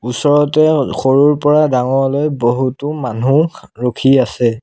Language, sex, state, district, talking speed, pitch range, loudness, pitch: Assamese, male, Assam, Sonitpur, 105 wpm, 125-145 Hz, -14 LUFS, 135 Hz